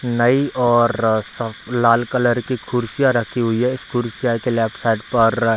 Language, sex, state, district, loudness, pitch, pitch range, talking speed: Hindi, male, Bihar, Darbhanga, -18 LUFS, 120 Hz, 115-125 Hz, 185 wpm